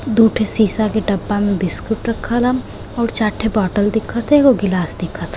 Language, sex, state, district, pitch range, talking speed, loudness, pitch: Bhojpuri, female, Uttar Pradesh, Varanasi, 205-235 Hz, 210 wpm, -17 LUFS, 220 Hz